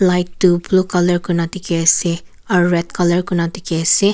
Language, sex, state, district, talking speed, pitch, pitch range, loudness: Nagamese, female, Nagaland, Kohima, 190 wpm, 175 Hz, 170-185 Hz, -16 LUFS